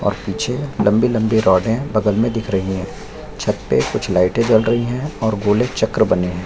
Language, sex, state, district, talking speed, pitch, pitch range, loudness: Hindi, male, Chhattisgarh, Sukma, 205 wpm, 110 Hz, 100-120 Hz, -18 LUFS